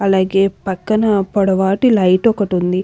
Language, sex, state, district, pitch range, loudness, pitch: Telugu, female, Andhra Pradesh, Anantapur, 185-205 Hz, -15 LUFS, 195 Hz